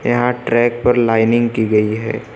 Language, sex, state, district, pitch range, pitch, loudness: Hindi, male, Uttar Pradesh, Lucknow, 110-120 Hz, 115 Hz, -15 LUFS